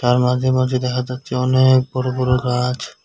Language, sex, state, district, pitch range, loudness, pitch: Bengali, male, West Bengal, Cooch Behar, 125-130 Hz, -18 LUFS, 125 Hz